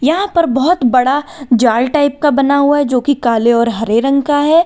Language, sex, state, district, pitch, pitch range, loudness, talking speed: Hindi, female, Uttar Pradesh, Lalitpur, 275 Hz, 245-295 Hz, -13 LUFS, 230 wpm